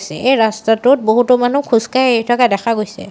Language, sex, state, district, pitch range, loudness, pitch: Assamese, female, Assam, Sonitpur, 225-250 Hz, -14 LUFS, 240 Hz